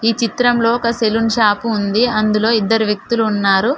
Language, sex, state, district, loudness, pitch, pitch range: Telugu, female, Telangana, Mahabubabad, -15 LUFS, 225 Hz, 215-235 Hz